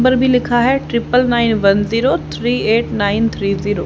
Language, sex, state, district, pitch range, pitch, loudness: Hindi, female, Haryana, Charkhi Dadri, 205-245 Hz, 235 Hz, -15 LUFS